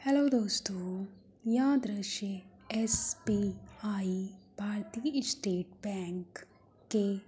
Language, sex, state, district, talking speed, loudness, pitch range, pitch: Hindi, female, Uttar Pradesh, Hamirpur, 80 wpm, -33 LUFS, 190-225 Hz, 205 Hz